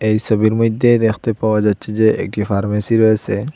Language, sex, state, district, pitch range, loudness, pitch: Bengali, male, Assam, Hailakandi, 105-115 Hz, -15 LUFS, 110 Hz